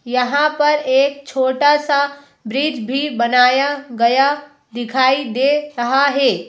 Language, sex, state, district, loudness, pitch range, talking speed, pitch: Hindi, female, Madhya Pradesh, Bhopal, -16 LUFS, 250-285 Hz, 120 wpm, 275 Hz